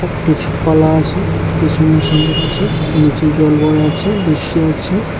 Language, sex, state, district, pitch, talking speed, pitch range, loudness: Bengali, male, Tripura, West Tripura, 155 Hz, 140 wpm, 150-160 Hz, -13 LUFS